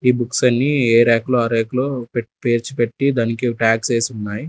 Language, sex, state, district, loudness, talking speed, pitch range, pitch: Telugu, male, Andhra Pradesh, Sri Satya Sai, -18 LUFS, 200 wpm, 115-125 Hz, 120 Hz